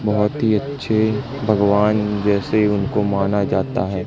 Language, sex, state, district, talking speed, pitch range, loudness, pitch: Hindi, male, Madhya Pradesh, Katni, 135 wpm, 100-110 Hz, -19 LUFS, 105 Hz